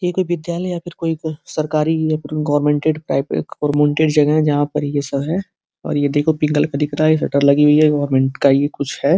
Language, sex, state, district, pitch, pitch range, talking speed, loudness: Hindi, male, Uttar Pradesh, Gorakhpur, 150 Hz, 145-160 Hz, 255 wpm, -17 LUFS